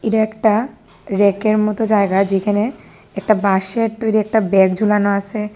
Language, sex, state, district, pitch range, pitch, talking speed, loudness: Bengali, female, Tripura, West Tripura, 200-220 Hz, 210 Hz, 140 wpm, -16 LUFS